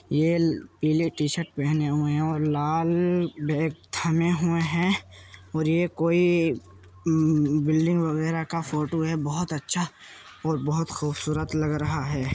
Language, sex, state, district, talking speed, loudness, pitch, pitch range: Hindi, male, Uttar Pradesh, Jyotiba Phule Nagar, 135 wpm, -25 LUFS, 155 Hz, 150-165 Hz